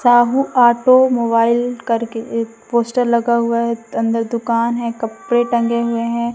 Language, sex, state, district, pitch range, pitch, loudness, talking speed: Hindi, female, Madhya Pradesh, Umaria, 230-240 Hz, 235 Hz, -16 LUFS, 140 wpm